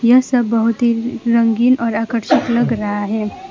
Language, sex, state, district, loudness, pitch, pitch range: Hindi, female, West Bengal, Alipurduar, -16 LUFS, 235 Hz, 225-245 Hz